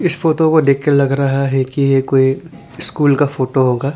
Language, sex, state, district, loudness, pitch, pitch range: Hindi, male, Arunachal Pradesh, Lower Dibang Valley, -14 LUFS, 140 Hz, 135-150 Hz